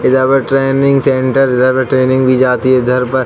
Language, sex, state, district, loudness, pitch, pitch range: Hindi, male, Uttar Pradesh, Jalaun, -11 LUFS, 130 Hz, 130-135 Hz